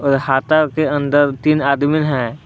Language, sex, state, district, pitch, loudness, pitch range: Hindi, male, Jharkhand, Palamu, 145 Hz, -16 LUFS, 135-155 Hz